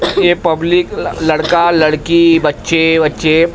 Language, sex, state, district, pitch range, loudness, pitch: Hindi, male, Maharashtra, Mumbai Suburban, 155-170 Hz, -12 LUFS, 165 Hz